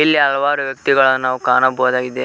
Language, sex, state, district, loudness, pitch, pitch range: Kannada, male, Karnataka, Koppal, -15 LUFS, 130 Hz, 130-140 Hz